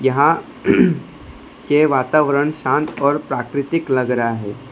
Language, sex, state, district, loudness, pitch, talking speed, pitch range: Hindi, male, Gujarat, Valsad, -18 LUFS, 140 Hz, 115 wpm, 130-150 Hz